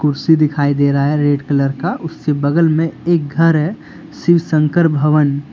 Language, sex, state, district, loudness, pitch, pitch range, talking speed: Hindi, male, Jharkhand, Deoghar, -15 LUFS, 150 Hz, 145-165 Hz, 185 wpm